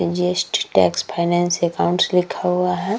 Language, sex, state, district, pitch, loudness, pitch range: Hindi, female, Bihar, Vaishali, 180 Hz, -19 LUFS, 175-180 Hz